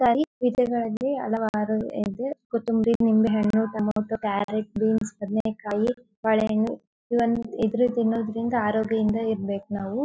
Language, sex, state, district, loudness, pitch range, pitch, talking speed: Kannada, female, Karnataka, Bellary, -25 LUFS, 215-235 Hz, 220 Hz, 90 wpm